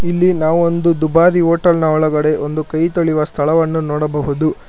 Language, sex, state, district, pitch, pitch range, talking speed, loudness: Kannada, male, Karnataka, Bangalore, 160 Hz, 155-170 Hz, 155 wpm, -15 LUFS